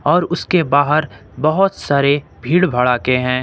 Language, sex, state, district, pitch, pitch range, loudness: Hindi, male, Jharkhand, Ranchi, 145 Hz, 125-175 Hz, -16 LUFS